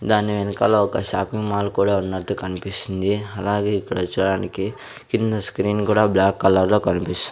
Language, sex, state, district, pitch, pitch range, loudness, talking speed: Telugu, male, Andhra Pradesh, Sri Satya Sai, 100 Hz, 95-105 Hz, -21 LUFS, 155 wpm